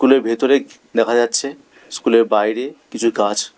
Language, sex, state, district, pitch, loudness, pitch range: Bengali, male, West Bengal, Alipurduar, 115 Hz, -17 LUFS, 110-135 Hz